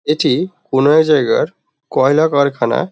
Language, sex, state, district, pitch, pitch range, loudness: Bengali, male, West Bengal, Dakshin Dinajpur, 155 Hz, 140-180 Hz, -14 LUFS